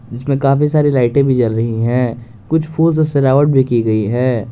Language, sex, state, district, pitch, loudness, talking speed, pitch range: Hindi, male, Jharkhand, Garhwa, 130 Hz, -14 LUFS, 210 wpm, 120-145 Hz